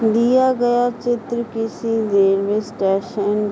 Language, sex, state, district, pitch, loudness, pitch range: Hindi, female, Uttar Pradesh, Hamirpur, 225 Hz, -19 LUFS, 205-240 Hz